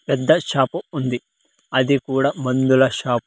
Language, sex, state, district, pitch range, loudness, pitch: Telugu, male, Andhra Pradesh, Sri Satya Sai, 130-140 Hz, -19 LUFS, 135 Hz